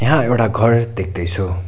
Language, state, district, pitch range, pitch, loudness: Nepali, West Bengal, Darjeeling, 95-115 Hz, 110 Hz, -17 LUFS